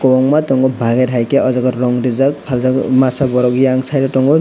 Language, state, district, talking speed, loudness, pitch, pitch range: Kokborok, Tripura, West Tripura, 215 wpm, -14 LUFS, 130 Hz, 125-135 Hz